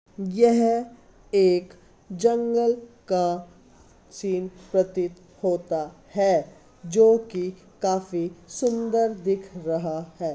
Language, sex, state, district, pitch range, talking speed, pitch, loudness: Hindi, female, Uttar Pradesh, Hamirpur, 175-225 Hz, 85 wpm, 190 Hz, -24 LUFS